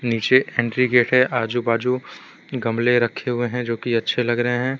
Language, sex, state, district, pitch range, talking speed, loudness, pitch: Hindi, male, Gujarat, Valsad, 120-125 Hz, 200 wpm, -20 LUFS, 120 Hz